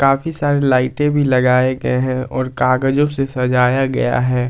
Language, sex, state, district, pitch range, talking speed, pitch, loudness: Hindi, male, Jharkhand, Palamu, 125-135 Hz, 175 wpm, 130 Hz, -16 LUFS